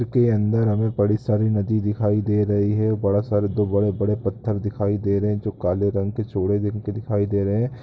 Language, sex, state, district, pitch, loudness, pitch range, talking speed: Hindi, male, Chhattisgarh, Raigarh, 105 Hz, -22 LUFS, 100-110 Hz, 220 wpm